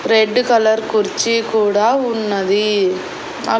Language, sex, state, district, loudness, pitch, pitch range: Telugu, female, Andhra Pradesh, Annamaya, -16 LUFS, 220 Hz, 205-225 Hz